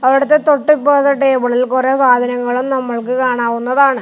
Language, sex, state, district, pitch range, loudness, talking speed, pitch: Malayalam, male, Kerala, Kasaragod, 245-275 Hz, -13 LUFS, 105 wpm, 255 Hz